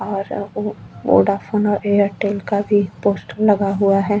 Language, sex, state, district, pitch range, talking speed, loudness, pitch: Hindi, female, Chhattisgarh, Bastar, 200-205 Hz, 140 wpm, -18 LUFS, 200 Hz